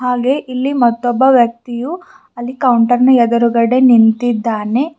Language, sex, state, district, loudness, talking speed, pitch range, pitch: Kannada, female, Karnataka, Bidar, -13 LUFS, 110 wpm, 235-260 Hz, 245 Hz